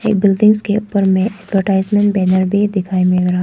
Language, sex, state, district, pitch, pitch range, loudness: Hindi, female, Arunachal Pradesh, Papum Pare, 195 Hz, 190-205 Hz, -14 LUFS